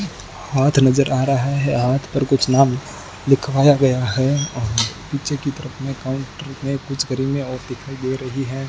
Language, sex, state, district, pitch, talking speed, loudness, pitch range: Hindi, male, Rajasthan, Bikaner, 135 Hz, 180 wpm, -19 LUFS, 130-140 Hz